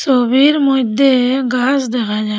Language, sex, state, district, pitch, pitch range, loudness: Bengali, female, Assam, Hailakandi, 255 Hz, 245-270 Hz, -13 LUFS